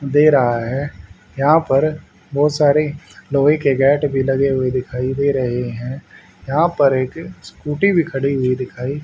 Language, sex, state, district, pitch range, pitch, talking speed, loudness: Hindi, male, Haryana, Rohtak, 130-150 Hz, 140 Hz, 165 wpm, -17 LUFS